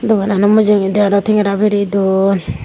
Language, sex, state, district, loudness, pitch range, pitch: Chakma, female, Tripura, Unakoti, -13 LUFS, 195-210 Hz, 200 Hz